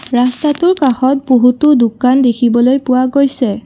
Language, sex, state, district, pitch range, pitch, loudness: Assamese, female, Assam, Kamrup Metropolitan, 245-275 Hz, 255 Hz, -11 LUFS